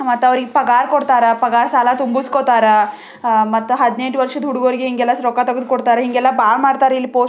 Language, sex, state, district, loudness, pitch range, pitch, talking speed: Kannada, female, Karnataka, Belgaum, -15 LUFS, 245-260 Hz, 250 Hz, 175 wpm